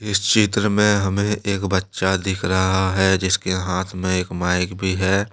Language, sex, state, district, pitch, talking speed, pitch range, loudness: Hindi, male, Jharkhand, Deoghar, 95 Hz, 180 wpm, 95-100 Hz, -20 LUFS